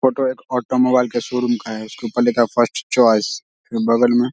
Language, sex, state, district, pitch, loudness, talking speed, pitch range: Hindi, male, Bihar, Samastipur, 120 Hz, -18 LUFS, 250 wpm, 115-125 Hz